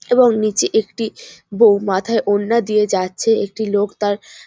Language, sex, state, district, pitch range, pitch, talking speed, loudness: Bengali, female, West Bengal, North 24 Parganas, 205-225 Hz, 215 Hz, 160 wpm, -17 LUFS